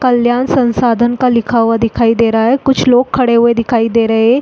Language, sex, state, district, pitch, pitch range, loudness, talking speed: Hindi, female, Uttarakhand, Uttarkashi, 235 Hz, 230-250 Hz, -11 LUFS, 230 wpm